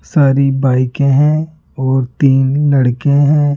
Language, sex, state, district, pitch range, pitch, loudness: Hindi, male, Rajasthan, Jaipur, 135-145 Hz, 140 Hz, -13 LUFS